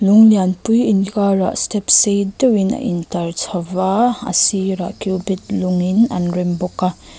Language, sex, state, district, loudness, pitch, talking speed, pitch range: Mizo, female, Mizoram, Aizawl, -16 LUFS, 195 Hz, 150 wpm, 180-210 Hz